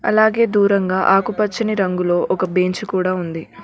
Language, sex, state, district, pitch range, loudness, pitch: Telugu, female, Telangana, Mahabubabad, 185-210 Hz, -17 LUFS, 190 Hz